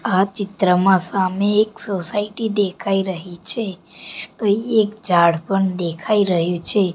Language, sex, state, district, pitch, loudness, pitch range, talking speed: Gujarati, female, Gujarat, Gandhinagar, 195 Hz, -19 LUFS, 180-210 Hz, 130 wpm